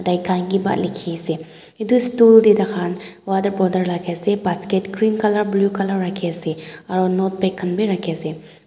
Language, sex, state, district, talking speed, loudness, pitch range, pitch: Nagamese, female, Nagaland, Dimapur, 185 wpm, -19 LUFS, 175-200 Hz, 185 Hz